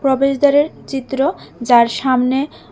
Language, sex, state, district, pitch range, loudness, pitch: Bengali, female, Tripura, West Tripura, 255-280 Hz, -16 LUFS, 270 Hz